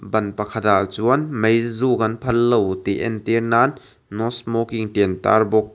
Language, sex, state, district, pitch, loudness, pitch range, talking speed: Mizo, male, Mizoram, Aizawl, 110 Hz, -19 LUFS, 105-115 Hz, 165 wpm